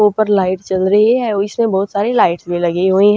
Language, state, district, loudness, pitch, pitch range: Haryanvi, Haryana, Rohtak, -15 LUFS, 200 Hz, 185-210 Hz